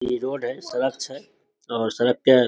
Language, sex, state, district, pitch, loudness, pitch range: Maithili, male, Bihar, Samastipur, 125 Hz, -24 LUFS, 120-130 Hz